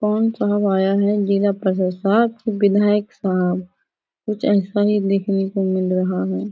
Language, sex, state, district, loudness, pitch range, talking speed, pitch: Hindi, female, Bihar, Kishanganj, -19 LUFS, 185-205 Hz, 120 wpm, 200 Hz